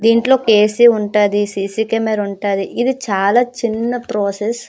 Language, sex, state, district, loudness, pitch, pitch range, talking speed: Telugu, female, Andhra Pradesh, Srikakulam, -15 LUFS, 220 Hz, 205-240 Hz, 155 wpm